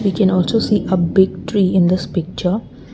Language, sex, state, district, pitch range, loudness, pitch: English, female, Assam, Kamrup Metropolitan, 180-200 Hz, -17 LUFS, 185 Hz